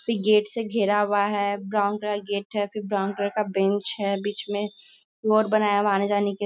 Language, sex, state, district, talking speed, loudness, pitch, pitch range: Hindi, female, Bihar, Sitamarhi, 225 wpm, -24 LUFS, 205 Hz, 200-210 Hz